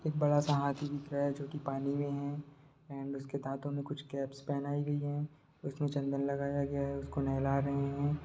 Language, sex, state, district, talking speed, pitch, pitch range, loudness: Hindi, male, Bihar, Sitamarhi, 220 wpm, 140 Hz, 140-145 Hz, -36 LUFS